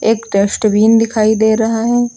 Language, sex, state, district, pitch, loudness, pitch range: Hindi, female, Uttar Pradesh, Lucknow, 220 Hz, -13 LUFS, 215-225 Hz